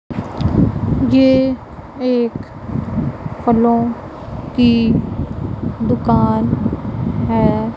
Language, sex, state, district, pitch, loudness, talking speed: Hindi, female, Punjab, Pathankot, 230 Hz, -17 LUFS, 45 wpm